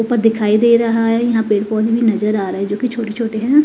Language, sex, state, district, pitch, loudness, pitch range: Hindi, female, Bihar, West Champaran, 225 Hz, -16 LUFS, 215-235 Hz